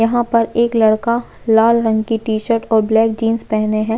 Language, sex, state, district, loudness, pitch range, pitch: Hindi, female, Chhattisgarh, Jashpur, -15 LUFS, 220-230 Hz, 225 Hz